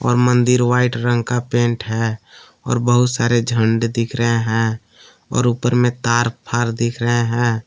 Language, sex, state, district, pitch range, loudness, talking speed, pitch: Hindi, male, Jharkhand, Palamu, 115-120 Hz, -18 LUFS, 165 wpm, 120 Hz